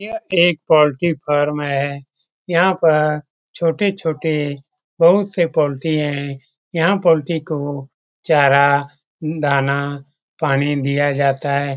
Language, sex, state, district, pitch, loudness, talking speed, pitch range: Hindi, male, Bihar, Lakhisarai, 150 Hz, -17 LUFS, 120 wpm, 140-165 Hz